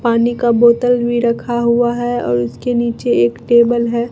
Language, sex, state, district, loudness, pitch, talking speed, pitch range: Hindi, female, Bihar, Katihar, -14 LUFS, 235 Hz, 190 wpm, 235-240 Hz